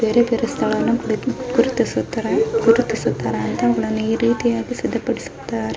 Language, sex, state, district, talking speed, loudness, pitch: Kannada, female, Karnataka, Raichur, 115 wpm, -20 LUFS, 225 Hz